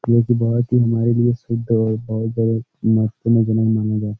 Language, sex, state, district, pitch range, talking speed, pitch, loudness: Hindi, male, Uttar Pradesh, Etah, 110-120 Hz, 215 wpm, 115 Hz, -18 LUFS